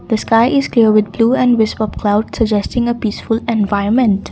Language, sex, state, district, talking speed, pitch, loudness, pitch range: English, female, Assam, Kamrup Metropolitan, 150 wpm, 225 Hz, -14 LUFS, 210-235 Hz